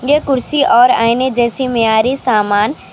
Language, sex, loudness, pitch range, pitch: Urdu, female, -13 LUFS, 230-270 Hz, 250 Hz